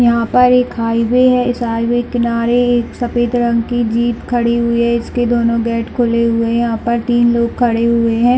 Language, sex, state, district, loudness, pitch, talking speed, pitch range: Hindi, female, Chhattisgarh, Raigarh, -14 LUFS, 235 Hz, 215 wpm, 230-240 Hz